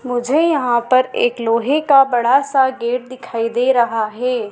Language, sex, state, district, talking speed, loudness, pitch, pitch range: Hindi, female, Madhya Pradesh, Dhar, 175 wpm, -16 LUFS, 245 Hz, 235-265 Hz